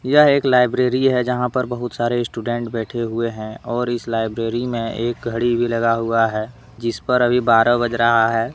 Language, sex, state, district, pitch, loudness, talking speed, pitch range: Hindi, male, Jharkhand, Deoghar, 120 Hz, -19 LUFS, 190 wpm, 115-125 Hz